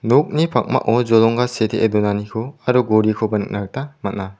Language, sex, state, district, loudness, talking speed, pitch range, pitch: Garo, male, Meghalaya, South Garo Hills, -18 LUFS, 135 wpm, 105-125 Hz, 115 Hz